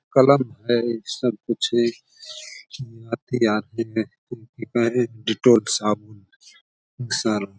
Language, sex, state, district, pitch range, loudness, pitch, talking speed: Maithili, male, Bihar, Samastipur, 110-125 Hz, -22 LUFS, 115 Hz, 70 wpm